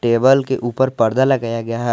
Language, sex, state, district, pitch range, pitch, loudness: Hindi, male, Jharkhand, Garhwa, 115-130 Hz, 120 Hz, -17 LUFS